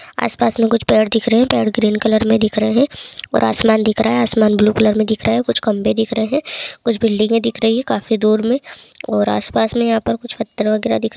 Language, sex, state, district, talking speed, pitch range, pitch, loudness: Hindi, female, Bihar, Bhagalpur, 265 wpm, 215-230 Hz, 225 Hz, -16 LUFS